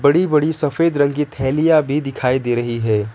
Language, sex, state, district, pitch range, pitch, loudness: Hindi, male, West Bengal, Alipurduar, 125-150 Hz, 145 Hz, -17 LUFS